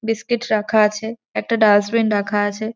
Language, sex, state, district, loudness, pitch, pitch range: Bengali, female, West Bengal, Jhargram, -18 LUFS, 220 Hz, 210-225 Hz